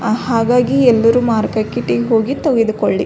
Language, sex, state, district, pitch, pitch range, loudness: Kannada, female, Karnataka, Belgaum, 230 Hz, 220-245 Hz, -14 LUFS